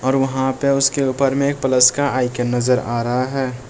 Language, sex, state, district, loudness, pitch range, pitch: Hindi, male, Bihar, Bhagalpur, -18 LUFS, 125-135 Hz, 130 Hz